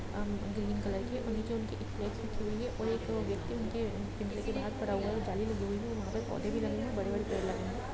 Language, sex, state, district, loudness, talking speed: Hindi, female, Bihar, Gopalganj, -36 LUFS, 240 wpm